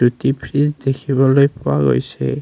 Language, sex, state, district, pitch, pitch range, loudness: Assamese, male, Assam, Kamrup Metropolitan, 135 Hz, 120-140 Hz, -17 LUFS